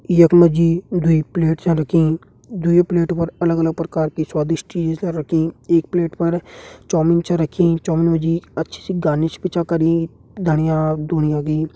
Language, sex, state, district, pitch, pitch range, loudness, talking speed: Hindi, male, Uttarakhand, Tehri Garhwal, 165 Hz, 160-170 Hz, -18 LUFS, 175 wpm